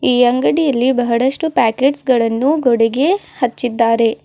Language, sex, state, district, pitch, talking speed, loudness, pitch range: Kannada, female, Karnataka, Bidar, 250 Hz, 100 wpm, -15 LUFS, 235-275 Hz